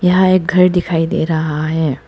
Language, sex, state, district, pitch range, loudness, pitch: Hindi, female, Arunachal Pradesh, Papum Pare, 160-180 Hz, -14 LUFS, 165 Hz